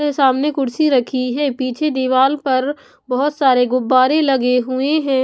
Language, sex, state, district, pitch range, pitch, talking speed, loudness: Hindi, female, Punjab, Pathankot, 255-290 Hz, 265 Hz, 150 wpm, -16 LUFS